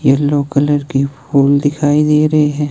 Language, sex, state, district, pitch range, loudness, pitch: Hindi, male, Himachal Pradesh, Shimla, 140-150 Hz, -13 LUFS, 145 Hz